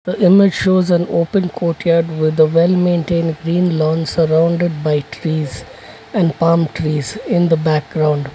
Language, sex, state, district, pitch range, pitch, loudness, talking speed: English, male, Karnataka, Bangalore, 155-175 Hz, 165 Hz, -15 LUFS, 150 wpm